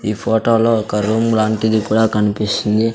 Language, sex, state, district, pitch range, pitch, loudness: Telugu, male, Andhra Pradesh, Sri Satya Sai, 105-110 Hz, 110 Hz, -16 LUFS